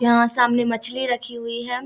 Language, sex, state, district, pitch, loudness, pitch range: Maithili, female, Bihar, Samastipur, 240 Hz, -21 LUFS, 235-245 Hz